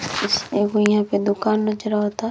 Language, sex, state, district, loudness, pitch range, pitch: Bhojpuri, female, Uttar Pradesh, Deoria, -20 LUFS, 205-215 Hz, 210 Hz